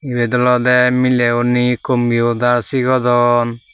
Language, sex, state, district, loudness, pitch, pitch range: Chakma, male, Tripura, Dhalai, -14 LUFS, 120 Hz, 120-125 Hz